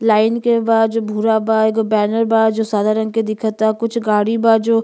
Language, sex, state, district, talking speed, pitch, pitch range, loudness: Bhojpuri, female, Uttar Pradesh, Gorakhpur, 235 wpm, 220 Hz, 220-225 Hz, -16 LUFS